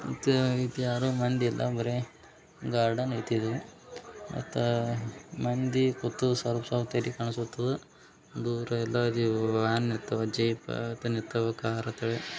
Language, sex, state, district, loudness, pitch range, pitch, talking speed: Kannada, male, Karnataka, Bijapur, -30 LUFS, 115-125 Hz, 120 Hz, 115 wpm